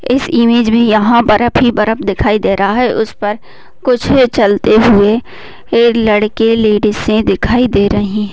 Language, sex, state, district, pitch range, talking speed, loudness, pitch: Hindi, female, Uttar Pradesh, Deoria, 210-240 Hz, 165 wpm, -11 LUFS, 225 Hz